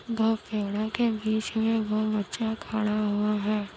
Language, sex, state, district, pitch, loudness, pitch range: Hindi, female, Bihar, Kishanganj, 215 Hz, -27 LUFS, 210-220 Hz